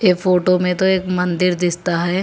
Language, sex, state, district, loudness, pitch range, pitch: Hindi, female, Telangana, Hyderabad, -17 LUFS, 180-185 Hz, 180 Hz